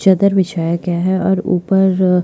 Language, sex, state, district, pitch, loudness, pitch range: Hindi, female, Chhattisgarh, Bastar, 185 Hz, -15 LUFS, 180-190 Hz